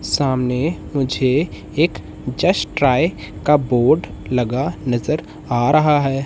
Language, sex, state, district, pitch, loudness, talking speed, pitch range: Hindi, male, Madhya Pradesh, Katni, 135 Hz, -18 LUFS, 115 wpm, 125-150 Hz